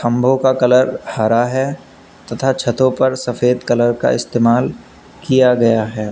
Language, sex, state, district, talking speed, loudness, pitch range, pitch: Hindi, male, Uttar Pradesh, Lucknow, 145 wpm, -15 LUFS, 120-130 Hz, 125 Hz